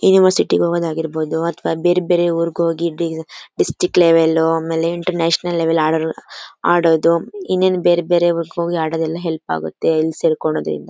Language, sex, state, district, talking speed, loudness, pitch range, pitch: Kannada, female, Karnataka, Mysore, 165 wpm, -17 LUFS, 160-175 Hz, 165 Hz